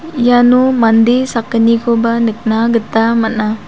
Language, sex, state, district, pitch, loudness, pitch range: Garo, female, Meghalaya, South Garo Hills, 230 Hz, -12 LUFS, 225-245 Hz